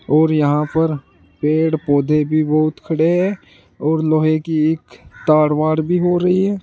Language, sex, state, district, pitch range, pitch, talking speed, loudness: Hindi, male, Uttar Pradesh, Saharanpur, 150-160 Hz, 155 Hz, 170 wpm, -17 LUFS